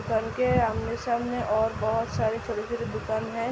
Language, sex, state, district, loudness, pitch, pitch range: Hindi, female, Uttar Pradesh, Ghazipur, -27 LUFS, 225 Hz, 220-235 Hz